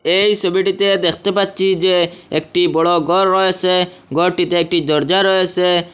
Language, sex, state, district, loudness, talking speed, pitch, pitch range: Bengali, male, Assam, Hailakandi, -15 LUFS, 140 wpm, 180 Hz, 175-190 Hz